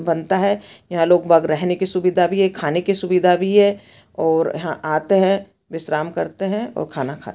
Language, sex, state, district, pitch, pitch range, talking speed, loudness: Hindi, female, Chhattisgarh, Bastar, 180 Hz, 160-195 Hz, 205 wpm, -19 LUFS